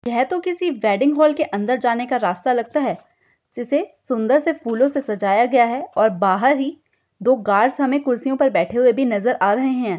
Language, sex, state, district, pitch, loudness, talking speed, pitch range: Hindi, female, Uttar Pradesh, Budaun, 255 Hz, -19 LUFS, 210 wpm, 230-280 Hz